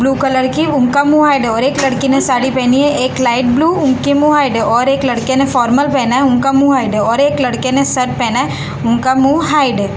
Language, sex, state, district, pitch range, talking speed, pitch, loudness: Hindi, female, Gujarat, Valsad, 250-280 Hz, 260 wpm, 265 Hz, -12 LUFS